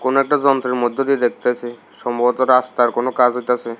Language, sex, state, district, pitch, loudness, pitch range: Bengali, male, Tripura, South Tripura, 125 Hz, -17 LUFS, 120-130 Hz